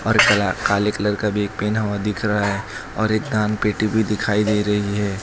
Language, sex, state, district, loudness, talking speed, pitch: Hindi, male, Gujarat, Valsad, -20 LUFS, 230 wpm, 105 Hz